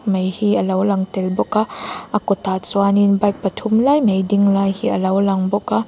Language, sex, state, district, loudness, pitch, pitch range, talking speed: Mizo, female, Mizoram, Aizawl, -17 LUFS, 200 Hz, 190-210 Hz, 245 wpm